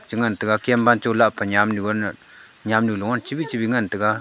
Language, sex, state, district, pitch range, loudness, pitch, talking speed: Wancho, male, Arunachal Pradesh, Longding, 105-120 Hz, -21 LUFS, 110 Hz, 185 wpm